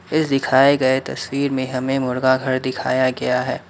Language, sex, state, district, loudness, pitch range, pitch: Hindi, male, Assam, Kamrup Metropolitan, -19 LUFS, 130-135 Hz, 130 Hz